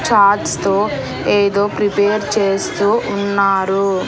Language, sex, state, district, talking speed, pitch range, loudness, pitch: Telugu, female, Andhra Pradesh, Annamaya, 90 wpm, 195-205 Hz, -16 LUFS, 200 Hz